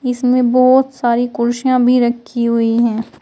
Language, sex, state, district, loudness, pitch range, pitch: Hindi, female, Uttar Pradesh, Shamli, -14 LUFS, 235-255 Hz, 245 Hz